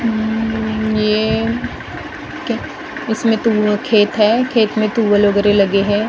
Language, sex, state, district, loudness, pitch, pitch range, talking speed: Hindi, female, Maharashtra, Gondia, -16 LUFS, 220 Hz, 210-225 Hz, 140 wpm